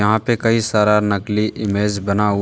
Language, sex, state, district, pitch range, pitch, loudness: Hindi, male, Jharkhand, Deoghar, 105-110 Hz, 105 Hz, -17 LUFS